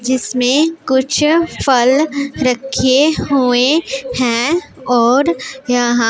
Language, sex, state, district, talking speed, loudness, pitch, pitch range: Hindi, female, Punjab, Pathankot, 80 wpm, -14 LUFS, 265 Hz, 250-300 Hz